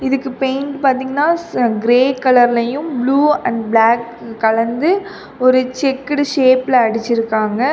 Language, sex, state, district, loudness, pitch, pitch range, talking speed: Tamil, female, Tamil Nadu, Kanyakumari, -15 LUFS, 255 Hz, 235-275 Hz, 110 wpm